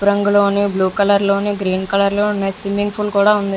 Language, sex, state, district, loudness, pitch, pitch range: Telugu, female, Andhra Pradesh, Visakhapatnam, -16 LUFS, 200 Hz, 200-205 Hz